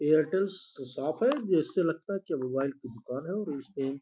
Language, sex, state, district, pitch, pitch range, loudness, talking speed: Hindi, male, Uttar Pradesh, Gorakhpur, 155 Hz, 135-190 Hz, -31 LUFS, 225 wpm